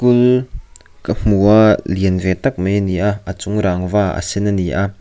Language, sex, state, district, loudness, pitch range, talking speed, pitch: Mizo, male, Mizoram, Aizawl, -16 LUFS, 95-105 Hz, 205 wpm, 100 Hz